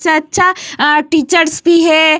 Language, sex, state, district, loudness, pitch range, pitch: Hindi, female, Bihar, Vaishali, -11 LUFS, 310-340 Hz, 315 Hz